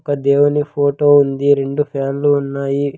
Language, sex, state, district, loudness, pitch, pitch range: Telugu, male, Andhra Pradesh, Sri Satya Sai, -15 LUFS, 145 Hz, 140-145 Hz